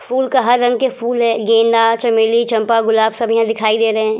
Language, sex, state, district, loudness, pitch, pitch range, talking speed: Hindi, female, Bihar, Vaishali, -14 LUFS, 230 Hz, 225-240 Hz, 240 wpm